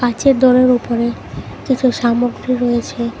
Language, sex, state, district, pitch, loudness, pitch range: Bengali, female, West Bengal, Cooch Behar, 245 Hz, -15 LUFS, 235-255 Hz